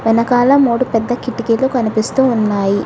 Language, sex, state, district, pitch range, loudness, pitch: Telugu, female, Telangana, Hyderabad, 225-250 Hz, -14 LUFS, 235 Hz